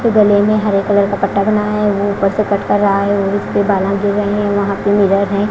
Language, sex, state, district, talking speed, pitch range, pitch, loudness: Hindi, female, Punjab, Fazilka, 270 wpm, 200-205 Hz, 200 Hz, -14 LUFS